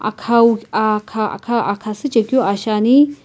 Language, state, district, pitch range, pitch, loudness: Sumi, Nagaland, Kohima, 215-235 Hz, 225 Hz, -16 LUFS